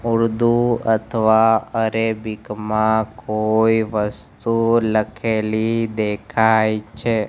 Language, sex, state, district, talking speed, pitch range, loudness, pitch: Gujarati, male, Gujarat, Gandhinagar, 75 wpm, 110-115 Hz, -19 LUFS, 110 Hz